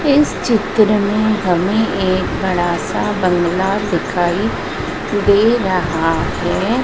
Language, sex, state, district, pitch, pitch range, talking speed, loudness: Hindi, female, Madhya Pradesh, Dhar, 195 Hz, 175-210 Hz, 95 wpm, -16 LUFS